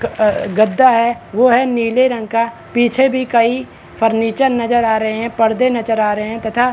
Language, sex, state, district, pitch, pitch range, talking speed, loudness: Hindi, male, Chhattisgarh, Balrampur, 230 Hz, 225-245 Hz, 185 wpm, -15 LUFS